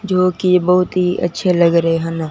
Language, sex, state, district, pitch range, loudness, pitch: Hindi, male, Punjab, Fazilka, 170-185 Hz, -15 LUFS, 180 Hz